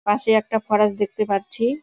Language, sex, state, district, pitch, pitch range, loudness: Bengali, female, West Bengal, Jalpaiguri, 210 Hz, 205-220 Hz, -21 LUFS